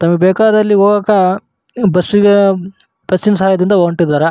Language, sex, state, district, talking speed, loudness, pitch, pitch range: Kannada, male, Karnataka, Raichur, 110 wpm, -11 LUFS, 195 Hz, 185-205 Hz